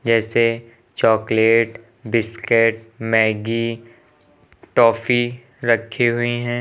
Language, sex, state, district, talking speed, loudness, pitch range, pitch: Hindi, male, Uttar Pradesh, Lucknow, 75 wpm, -18 LUFS, 115-120 Hz, 115 Hz